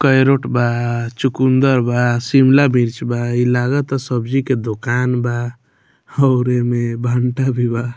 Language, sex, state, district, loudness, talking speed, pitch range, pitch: Bhojpuri, male, Bihar, Muzaffarpur, -16 LUFS, 145 wpm, 120-130 Hz, 125 Hz